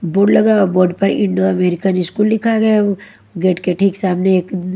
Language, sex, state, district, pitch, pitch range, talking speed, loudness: Hindi, female, Haryana, Jhajjar, 190 Hz, 185-205 Hz, 175 wpm, -15 LUFS